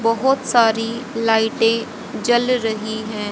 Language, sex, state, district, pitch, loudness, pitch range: Hindi, female, Haryana, Jhajjar, 230 Hz, -19 LUFS, 220-240 Hz